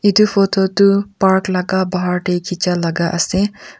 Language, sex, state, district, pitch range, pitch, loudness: Nagamese, female, Nagaland, Kohima, 180-200 Hz, 190 Hz, -16 LUFS